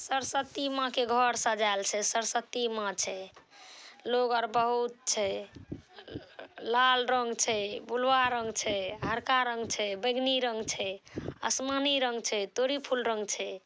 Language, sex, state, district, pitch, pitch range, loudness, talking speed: Maithili, female, Bihar, Saharsa, 240 Hz, 215-255 Hz, -30 LUFS, 150 wpm